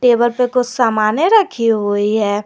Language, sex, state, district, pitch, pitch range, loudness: Hindi, female, Jharkhand, Garhwa, 235 Hz, 215-250 Hz, -15 LUFS